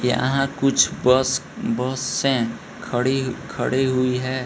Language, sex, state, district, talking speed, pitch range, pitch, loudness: Hindi, male, Bihar, East Champaran, 120 wpm, 125-135 Hz, 130 Hz, -21 LUFS